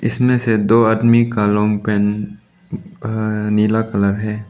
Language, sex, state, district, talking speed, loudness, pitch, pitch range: Hindi, male, Arunachal Pradesh, Lower Dibang Valley, 135 wpm, -16 LUFS, 110 Hz, 105-115 Hz